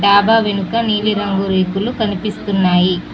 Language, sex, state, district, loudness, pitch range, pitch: Telugu, female, Telangana, Mahabubabad, -15 LUFS, 195-215 Hz, 200 Hz